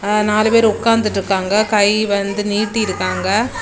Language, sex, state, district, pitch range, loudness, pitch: Tamil, female, Tamil Nadu, Kanyakumari, 200-215 Hz, -16 LUFS, 210 Hz